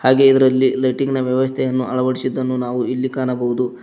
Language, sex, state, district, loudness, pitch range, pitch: Kannada, male, Karnataka, Koppal, -18 LUFS, 125-130 Hz, 130 Hz